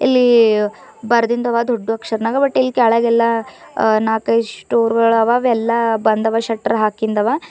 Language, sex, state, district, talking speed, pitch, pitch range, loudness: Kannada, female, Karnataka, Bidar, 160 wpm, 230 Hz, 220-235 Hz, -16 LUFS